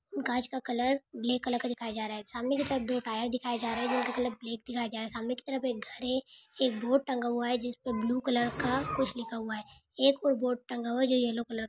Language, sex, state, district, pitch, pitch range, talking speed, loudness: Hindi, female, Bihar, Gopalganj, 245 Hz, 235-255 Hz, 280 wpm, -32 LUFS